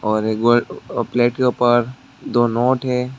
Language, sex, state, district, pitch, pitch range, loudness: Hindi, male, West Bengal, Alipurduar, 120 Hz, 120-125 Hz, -18 LUFS